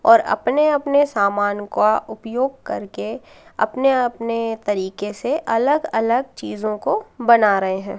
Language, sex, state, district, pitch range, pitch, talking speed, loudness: Hindi, female, Madhya Pradesh, Katni, 205-265 Hz, 230 Hz, 135 wpm, -20 LUFS